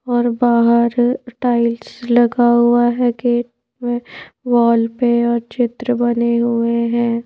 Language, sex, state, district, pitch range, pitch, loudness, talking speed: Hindi, female, Madhya Pradesh, Bhopal, 235-245 Hz, 240 Hz, -16 LUFS, 125 wpm